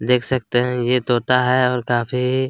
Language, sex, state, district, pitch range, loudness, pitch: Hindi, male, Chhattisgarh, Kabirdham, 120-125 Hz, -18 LUFS, 125 Hz